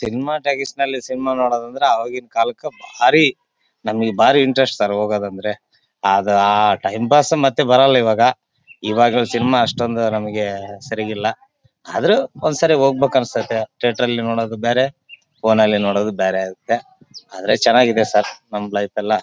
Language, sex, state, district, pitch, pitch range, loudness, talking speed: Kannada, male, Karnataka, Bellary, 115 Hz, 105-130 Hz, -17 LUFS, 140 wpm